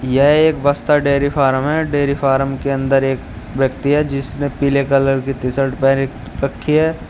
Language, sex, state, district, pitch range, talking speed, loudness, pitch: Hindi, male, Uttar Pradesh, Shamli, 135-145 Hz, 180 wpm, -16 LUFS, 135 Hz